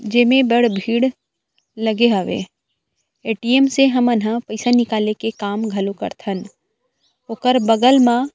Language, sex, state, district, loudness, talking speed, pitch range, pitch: Chhattisgarhi, female, Chhattisgarh, Rajnandgaon, -17 LUFS, 135 wpm, 220-250 Hz, 235 Hz